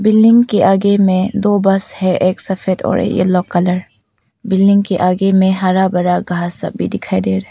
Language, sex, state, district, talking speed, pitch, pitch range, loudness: Hindi, female, Arunachal Pradesh, Papum Pare, 200 wpm, 185 Hz, 180-195 Hz, -14 LUFS